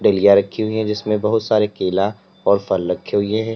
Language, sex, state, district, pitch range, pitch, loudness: Hindi, male, Uttar Pradesh, Lalitpur, 100-110 Hz, 105 Hz, -18 LUFS